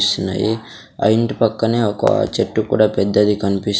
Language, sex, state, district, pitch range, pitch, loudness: Telugu, male, Andhra Pradesh, Sri Satya Sai, 100-115 Hz, 105 Hz, -17 LUFS